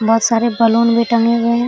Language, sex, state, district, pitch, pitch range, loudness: Hindi, female, Jharkhand, Sahebganj, 230 Hz, 230-235 Hz, -14 LUFS